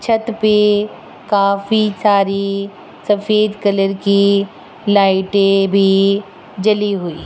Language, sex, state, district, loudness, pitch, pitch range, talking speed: Hindi, female, Rajasthan, Jaipur, -15 LUFS, 200 Hz, 195-210 Hz, 100 wpm